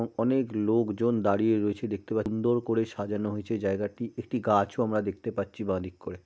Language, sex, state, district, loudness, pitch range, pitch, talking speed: Bengali, male, West Bengal, Malda, -29 LUFS, 100-115 Hz, 110 Hz, 180 wpm